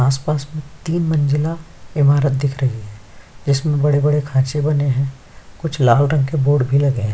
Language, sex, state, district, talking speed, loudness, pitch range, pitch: Hindi, male, Chhattisgarh, Sukma, 185 wpm, -18 LUFS, 130-150 Hz, 140 Hz